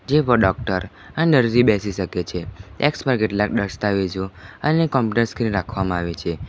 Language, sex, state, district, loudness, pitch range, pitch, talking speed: Gujarati, male, Gujarat, Valsad, -20 LUFS, 95-120 Hz, 105 Hz, 155 wpm